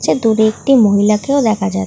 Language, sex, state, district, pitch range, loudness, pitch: Bengali, female, West Bengal, North 24 Parganas, 205-240 Hz, -13 LUFS, 220 Hz